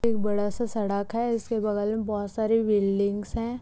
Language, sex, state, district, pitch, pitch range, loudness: Hindi, female, Chhattisgarh, Raigarh, 215 Hz, 205-230 Hz, -27 LUFS